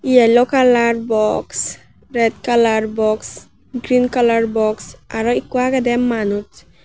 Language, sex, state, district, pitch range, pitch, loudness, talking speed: Chakma, female, Tripura, Unakoti, 220-245 Hz, 235 Hz, -16 LUFS, 115 wpm